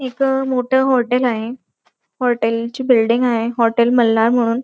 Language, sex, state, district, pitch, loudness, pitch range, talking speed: Marathi, female, Maharashtra, Dhule, 245 Hz, -16 LUFS, 230-255 Hz, 140 wpm